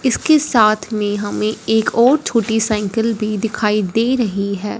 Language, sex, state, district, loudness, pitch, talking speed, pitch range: Hindi, female, Punjab, Fazilka, -16 LUFS, 220 Hz, 165 wpm, 210-230 Hz